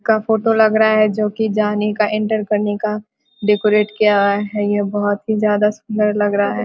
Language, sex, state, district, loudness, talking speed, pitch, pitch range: Hindi, female, Bihar, Vaishali, -17 LUFS, 215 wpm, 210 Hz, 205-215 Hz